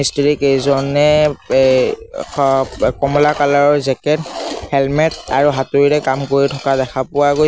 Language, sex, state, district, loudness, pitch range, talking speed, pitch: Assamese, male, Assam, Sonitpur, -15 LUFS, 135-150 Hz, 130 wpm, 145 Hz